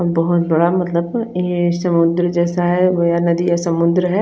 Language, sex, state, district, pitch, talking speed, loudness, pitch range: Hindi, female, Chandigarh, Chandigarh, 175 Hz, 185 wpm, -16 LUFS, 170-180 Hz